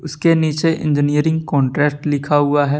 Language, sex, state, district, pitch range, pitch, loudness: Hindi, male, Jharkhand, Deoghar, 145-160 Hz, 150 Hz, -17 LUFS